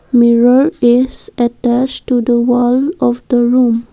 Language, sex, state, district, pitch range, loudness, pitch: English, female, Assam, Kamrup Metropolitan, 240-255 Hz, -12 LUFS, 245 Hz